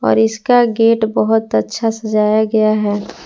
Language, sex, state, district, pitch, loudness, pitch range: Hindi, female, Jharkhand, Palamu, 220 Hz, -14 LUFS, 215-225 Hz